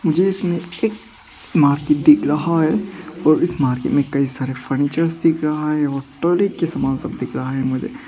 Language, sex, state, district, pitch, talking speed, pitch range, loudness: Hindi, male, Arunachal Pradesh, Papum Pare, 155 Hz, 185 wpm, 140-170 Hz, -19 LUFS